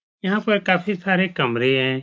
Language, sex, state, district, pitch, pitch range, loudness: Hindi, male, Uttar Pradesh, Etah, 185 Hz, 130-205 Hz, -20 LUFS